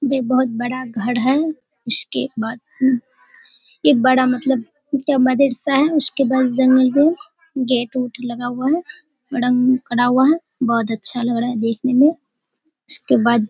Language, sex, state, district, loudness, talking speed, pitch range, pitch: Hindi, female, Bihar, Kishanganj, -18 LUFS, 140 wpm, 245-280 Hz, 255 Hz